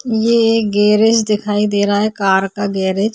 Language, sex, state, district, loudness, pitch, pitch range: Hindi, female, Chhattisgarh, Korba, -14 LUFS, 210 Hz, 200-220 Hz